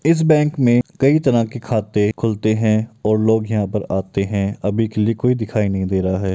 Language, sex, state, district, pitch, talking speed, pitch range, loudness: Maithili, male, Bihar, Muzaffarpur, 110 Hz, 235 wpm, 105-120 Hz, -18 LUFS